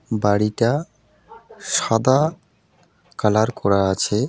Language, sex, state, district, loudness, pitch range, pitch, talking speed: Bengali, male, West Bengal, Alipurduar, -20 LUFS, 105-160 Hz, 115 Hz, 70 wpm